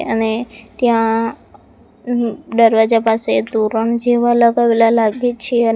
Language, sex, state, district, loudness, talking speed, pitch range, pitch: Gujarati, female, Gujarat, Valsad, -15 LUFS, 125 wpm, 225-240 Hz, 230 Hz